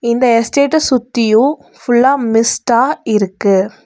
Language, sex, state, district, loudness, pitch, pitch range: Tamil, female, Tamil Nadu, Nilgiris, -13 LUFS, 235 Hz, 225-260 Hz